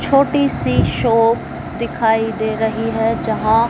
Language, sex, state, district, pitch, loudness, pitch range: Hindi, female, Haryana, Jhajjar, 225 Hz, -17 LUFS, 225-230 Hz